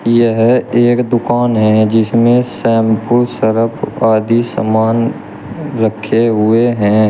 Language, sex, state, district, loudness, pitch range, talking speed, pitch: Hindi, male, Uttar Pradesh, Shamli, -12 LUFS, 110-120 Hz, 100 wpm, 115 Hz